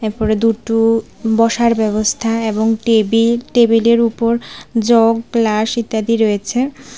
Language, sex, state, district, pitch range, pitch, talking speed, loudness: Bengali, female, Tripura, West Tripura, 220-235 Hz, 225 Hz, 105 wpm, -15 LUFS